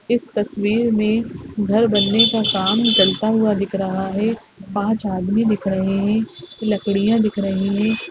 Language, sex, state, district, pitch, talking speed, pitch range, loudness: Hindi, female, Chhattisgarh, Rajnandgaon, 210 Hz, 155 wpm, 195-220 Hz, -18 LUFS